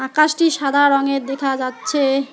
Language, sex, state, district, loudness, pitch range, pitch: Bengali, female, West Bengal, Alipurduar, -17 LUFS, 270-290 Hz, 275 Hz